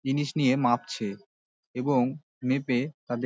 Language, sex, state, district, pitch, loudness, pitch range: Bengali, male, West Bengal, Dakshin Dinajpur, 130 Hz, -28 LUFS, 125-145 Hz